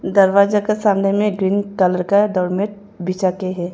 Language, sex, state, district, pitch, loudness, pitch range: Hindi, female, Arunachal Pradesh, Papum Pare, 195 Hz, -17 LUFS, 185-205 Hz